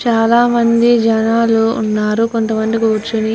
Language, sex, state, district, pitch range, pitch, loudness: Telugu, female, Andhra Pradesh, Guntur, 220-230 Hz, 225 Hz, -13 LUFS